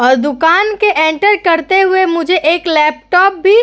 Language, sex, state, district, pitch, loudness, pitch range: Hindi, female, Uttar Pradesh, Etah, 350 Hz, -11 LUFS, 315-385 Hz